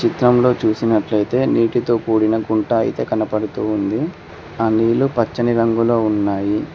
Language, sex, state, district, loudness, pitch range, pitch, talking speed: Telugu, male, Telangana, Mahabubabad, -17 LUFS, 110-120 Hz, 115 Hz, 105 wpm